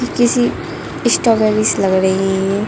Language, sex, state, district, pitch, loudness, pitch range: Hindi, female, Jharkhand, Jamtara, 215 Hz, -15 LUFS, 190-240 Hz